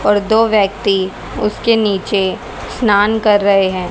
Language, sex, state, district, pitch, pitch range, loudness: Hindi, female, Haryana, Rohtak, 205 Hz, 195-215 Hz, -14 LUFS